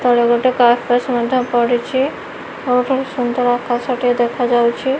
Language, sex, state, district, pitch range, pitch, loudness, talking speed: Odia, female, Odisha, Malkangiri, 240-255 Hz, 245 Hz, -16 LUFS, 130 wpm